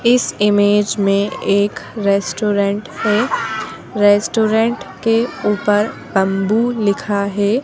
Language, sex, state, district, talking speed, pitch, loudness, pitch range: Hindi, female, Madhya Pradesh, Bhopal, 95 wpm, 205 Hz, -16 LUFS, 200-220 Hz